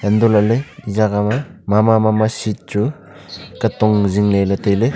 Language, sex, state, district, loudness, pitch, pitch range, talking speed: Wancho, male, Arunachal Pradesh, Longding, -16 LUFS, 105 Hz, 105-115 Hz, 230 wpm